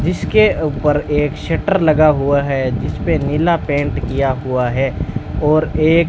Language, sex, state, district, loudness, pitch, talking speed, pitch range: Hindi, male, Rajasthan, Bikaner, -16 LUFS, 150 Hz, 160 wpm, 135-155 Hz